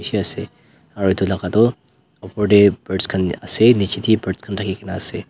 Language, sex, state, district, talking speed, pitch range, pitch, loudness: Nagamese, male, Nagaland, Dimapur, 190 wpm, 95-105 Hz, 100 Hz, -18 LUFS